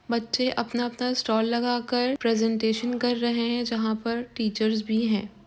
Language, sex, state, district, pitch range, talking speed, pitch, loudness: Hindi, female, Uttar Pradesh, Jyotiba Phule Nagar, 220-245 Hz, 140 wpm, 235 Hz, -26 LUFS